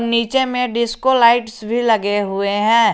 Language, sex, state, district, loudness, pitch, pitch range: Hindi, male, Jharkhand, Garhwa, -16 LUFS, 235 Hz, 220-240 Hz